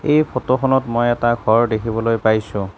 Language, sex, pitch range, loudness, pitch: Assamese, male, 110-130 Hz, -17 LUFS, 120 Hz